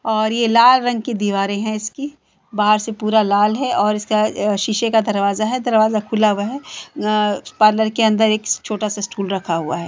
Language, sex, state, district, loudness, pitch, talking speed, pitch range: Hindi, female, Uttar Pradesh, Jalaun, -17 LUFS, 215 Hz, 210 wpm, 205-225 Hz